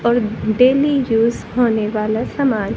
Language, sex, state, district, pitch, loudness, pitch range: Hindi, female, Haryana, Charkhi Dadri, 230 Hz, -17 LUFS, 215-250 Hz